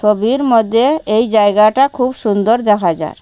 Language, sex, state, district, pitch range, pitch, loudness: Bengali, female, Assam, Hailakandi, 210-250 Hz, 220 Hz, -13 LUFS